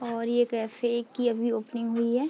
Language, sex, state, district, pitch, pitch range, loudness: Hindi, female, Uttar Pradesh, Deoria, 235 Hz, 230-240 Hz, -28 LUFS